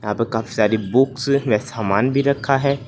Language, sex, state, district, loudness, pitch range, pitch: Hindi, male, Uttar Pradesh, Saharanpur, -19 LUFS, 110-135 Hz, 125 Hz